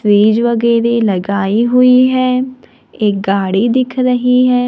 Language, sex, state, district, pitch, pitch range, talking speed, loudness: Hindi, female, Maharashtra, Gondia, 235 Hz, 210-250 Hz, 130 wpm, -12 LUFS